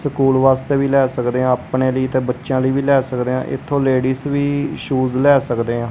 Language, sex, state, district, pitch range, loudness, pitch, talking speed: Punjabi, male, Punjab, Kapurthala, 130-140 Hz, -17 LUFS, 130 Hz, 215 wpm